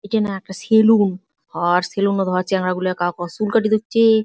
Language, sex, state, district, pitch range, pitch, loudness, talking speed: Bengali, female, West Bengal, Jalpaiguri, 185-220 Hz, 195 Hz, -18 LUFS, 195 wpm